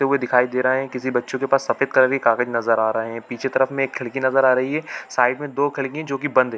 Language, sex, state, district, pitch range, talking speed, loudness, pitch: Hindi, male, Chhattisgarh, Bilaspur, 125-135 Hz, 335 wpm, -20 LUFS, 130 Hz